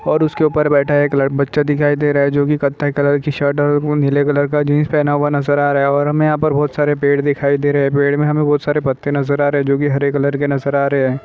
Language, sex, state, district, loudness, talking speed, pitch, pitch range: Hindi, male, Maharashtra, Nagpur, -15 LUFS, 300 wpm, 145 Hz, 140-145 Hz